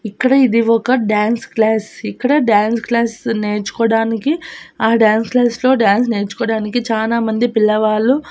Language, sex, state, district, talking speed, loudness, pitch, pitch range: Telugu, female, Andhra Pradesh, Annamaya, 125 wpm, -15 LUFS, 225 Hz, 215-245 Hz